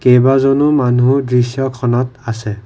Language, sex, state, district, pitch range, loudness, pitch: Assamese, male, Assam, Kamrup Metropolitan, 125-135 Hz, -14 LUFS, 125 Hz